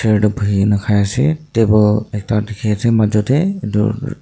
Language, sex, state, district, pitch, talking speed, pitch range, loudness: Nagamese, male, Nagaland, Dimapur, 105 Hz, 140 wpm, 105-115 Hz, -16 LUFS